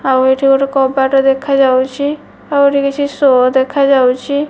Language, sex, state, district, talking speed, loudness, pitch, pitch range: Odia, female, Odisha, Malkangiri, 160 wpm, -12 LUFS, 270 Hz, 265-280 Hz